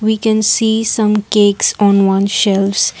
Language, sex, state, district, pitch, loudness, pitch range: English, female, Assam, Kamrup Metropolitan, 210 Hz, -13 LUFS, 200-220 Hz